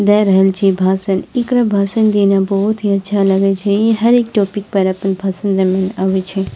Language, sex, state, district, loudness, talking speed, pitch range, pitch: Maithili, female, Bihar, Purnia, -14 LUFS, 200 wpm, 190-210 Hz, 195 Hz